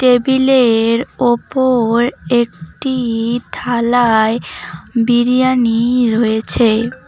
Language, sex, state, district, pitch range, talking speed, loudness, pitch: Bengali, female, West Bengal, Cooch Behar, 230-250 Hz, 50 wpm, -14 LUFS, 240 Hz